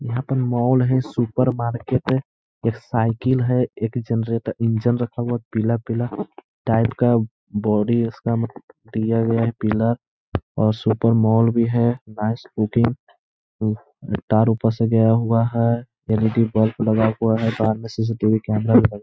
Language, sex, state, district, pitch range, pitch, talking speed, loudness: Hindi, male, Bihar, Gaya, 110-120 Hz, 115 Hz, 165 wpm, -21 LUFS